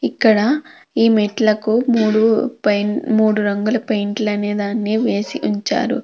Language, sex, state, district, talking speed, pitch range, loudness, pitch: Telugu, female, Andhra Pradesh, Krishna, 110 wpm, 210-230 Hz, -17 LUFS, 220 Hz